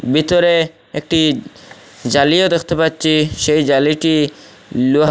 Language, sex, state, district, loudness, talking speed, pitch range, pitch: Bengali, male, Assam, Hailakandi, -15 LUFS, 95 wpm, 145-165 Hz, 155 Hz